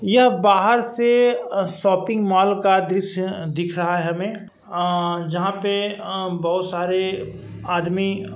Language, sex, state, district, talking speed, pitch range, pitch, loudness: Hindi, male, Uttar Pradesh, Varanasi, 145 wpm, 175-205 Hz, 190 Hz, -20 LUFS